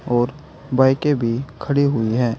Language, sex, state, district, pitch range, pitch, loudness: Hindi, male, Uttar Pradesh, Saharanpur, 120-140 Hz, 130 Hz, -19 LUFS